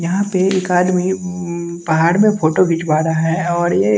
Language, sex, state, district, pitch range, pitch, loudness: Hindi, male, Bihar, West Champaran, 165-185 Hz, 175 Hz, -16 LUFS